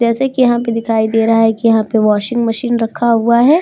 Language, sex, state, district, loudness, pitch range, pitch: Hindi, female, Uttar Pradesh, Hamirpur, -13 LUFS, 225-240 Hz, 230 Hz